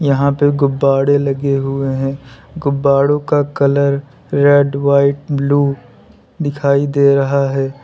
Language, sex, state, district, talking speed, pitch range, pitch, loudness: Hindi, male, Uttar Pradesh, Lalitpur, 120 wpm, 135-140 Hz, 140 Hz, -14 LUFS